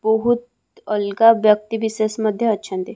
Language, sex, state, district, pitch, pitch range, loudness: Odia, female, Odisha, Khordha, 220 Hz, 210-225 Hz, -18 LUFS